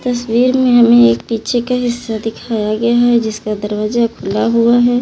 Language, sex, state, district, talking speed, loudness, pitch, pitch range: Hindi, female, Uttar Pradesh, Lalitpur, 180 wpm, -14 LUFS, 230 Hz, 220-240 Hz